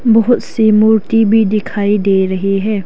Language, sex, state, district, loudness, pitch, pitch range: Hindi, female, Arunachal Pradesh, Lower Dibang Valley, -12 LUFS, 215 Hz, 200-225 Hz